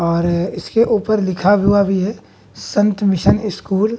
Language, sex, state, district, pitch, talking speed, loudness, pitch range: Hindi, male, Bihar, West Champaran, 200 Hz, 165 wpm, -16 LUFS, 185-215 Hz